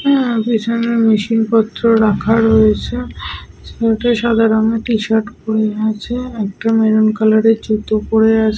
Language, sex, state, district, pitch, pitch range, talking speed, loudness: Bengali, female, Jharkhand, Sahebganj, 225 Hz, 220-230 Hz, 135 wpm, -15 LUFS